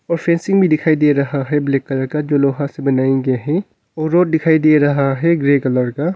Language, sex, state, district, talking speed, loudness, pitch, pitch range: Hindi, male, Arunachal Pradesh, Longding, 245 wpm, -16 LUFS, 145 Hz, 140-160 Hz